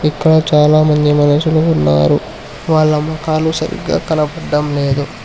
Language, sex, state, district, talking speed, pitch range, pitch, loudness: Telugu, male, Telangana, Hyderabad, 105 wpm, 145-160 Hz, 150 Hz, -13 LUFS